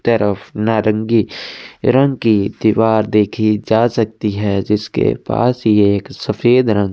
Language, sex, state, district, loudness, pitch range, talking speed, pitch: Hindi, male, Chhattisgarh, Sukma, -15 LUFS, 105-115 Hz, 140 wpm, 110 Hz